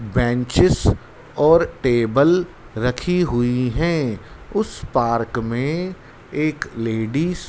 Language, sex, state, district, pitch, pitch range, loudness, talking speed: Hindi, male, Madhya Pradesh, Dhar, 125 Hz, 115-165 Hz, -20 LUFS, 95 wpm